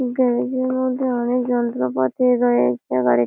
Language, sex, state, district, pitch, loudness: Bengali, female, West Bengal, Malda, 245 Hz, -20 LUFS